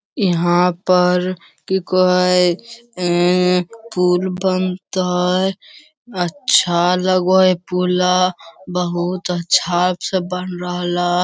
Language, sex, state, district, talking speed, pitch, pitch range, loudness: Hindi, male, Bihar, Lakhisarai, 90 wpm, 180 Hz, 180-185 Hz, -17 LUFS